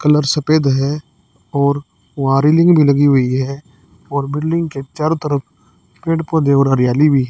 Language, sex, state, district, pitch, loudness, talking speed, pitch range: Hindi, female, Haryana, Charkhi Dadri, 145 Hz, -15 LUFS, 155 wpm, 135-155 Hz